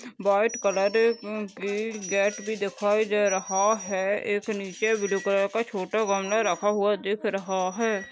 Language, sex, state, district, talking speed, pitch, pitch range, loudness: Hindi, female, Goa, North and South Goa, 165 wpm, 205 Hz, 195-215 Hz, -26 LUFS